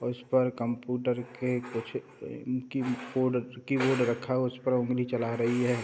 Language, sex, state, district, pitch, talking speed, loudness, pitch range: Hindi, male, Bihar, Sitamarhi, 125 Hz, 215 wpm, -30 LUFS, 120-130 Hz